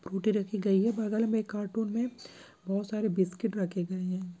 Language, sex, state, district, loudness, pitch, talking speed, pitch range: Hindi, male, Andhra Pradesh, Guntur, -31 LUFS, 210 Hz, 220 wpm, 185-220 Hz